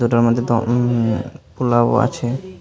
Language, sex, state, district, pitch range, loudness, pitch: Bengali, male, Tripura, Unakoti, 115-120 Hz, -18 LUFS, 120 Hz